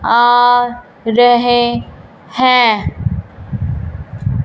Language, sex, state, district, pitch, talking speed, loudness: Hindi, female, Punjab, Fazilka, 225 Hz, 40 wpm, -13 LUFS